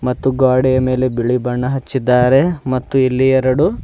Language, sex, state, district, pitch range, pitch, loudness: Kannada, male, Karnataka, Bidar, 125-130 Hz, 130 Hz, -15 LUFS